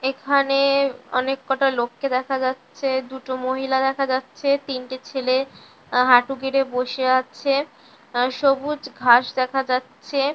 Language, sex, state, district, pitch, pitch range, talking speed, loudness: Bengali, female, West Bengal, North 24 Parganas, 265 Hz, 255-275 Hz, 135 wpm, -21 LUFS